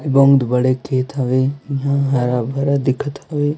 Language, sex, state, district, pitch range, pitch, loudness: Hindi, female, Chhattisgarh, Raipur, 130-140 Hz, 135 Hz, -17 LUFS